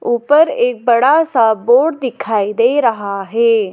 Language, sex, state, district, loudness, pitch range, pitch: Hindi, female, Madhya Pradesh, Dhar, -13 LUFS, 220-265 Hz, 240 Hz